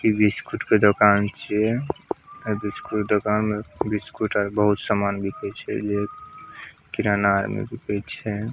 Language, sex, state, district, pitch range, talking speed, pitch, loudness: Maithili, male, Bihar, Samastipur, 100-110 Hz, 140 wpm, 105 Hz, -23 LUFS